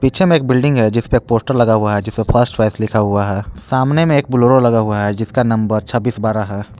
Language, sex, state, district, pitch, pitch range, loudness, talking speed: Hindi, male, Jharkhand, Palamu, 115 Hz, 110-130 Hz, -15 LUFS, 275 wpm